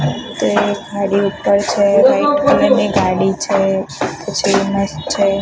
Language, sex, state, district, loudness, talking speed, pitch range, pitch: Gujarati, female, Gujarat, Gandhinagar, -15 LUFS, 65 wpm, 195-200 Hz, 200 Hz